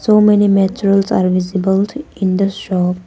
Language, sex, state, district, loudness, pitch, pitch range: English, female, Arunachal Pradesh, Papum Pare, -14 LUFS, 195 Hz, 185-205 Hz